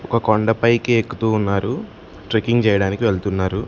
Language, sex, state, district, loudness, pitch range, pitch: Telugu, male, Andhra Pradesh, Sri Satya Sai, -19 LUFS, 100-115 Hz, 110 Hz